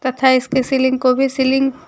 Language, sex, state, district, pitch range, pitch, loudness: Hindi, female, Jharkhand, Deoghar, 260-270 Hz, 260 Hz, -16 LUFS